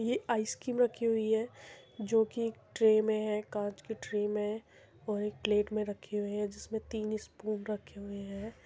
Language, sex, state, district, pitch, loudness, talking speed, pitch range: Hindi, female, Uttar Pradesh, Muzaffarnagar, 215 Hz, -34 LUFS, 210 wpm, 210-220 Hz